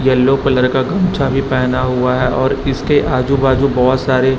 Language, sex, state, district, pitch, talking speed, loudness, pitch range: Hindi, male, Chhattisgarh, Raipur, 130 Hz, 190 wpm, -14 LUFS, 130-135 Hz